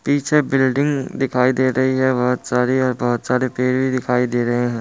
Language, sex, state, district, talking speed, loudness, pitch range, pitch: Hindi, male, Bihar, Muzaffarpur, 210 wpm, -18 LUFS, 125-130 Hz, 130 Hz